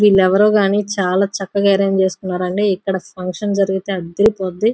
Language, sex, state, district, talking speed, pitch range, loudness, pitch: Telugu, female, Andhra Pradesh, Guntur, 125 wpm, 190-205 Hz, -17 LUFS, 195 Hz